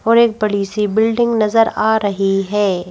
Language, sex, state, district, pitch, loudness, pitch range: Hindi, female, Madhya Pradesh, Bhopal, 215 Hz, -15 LUFS, 200-225 Hz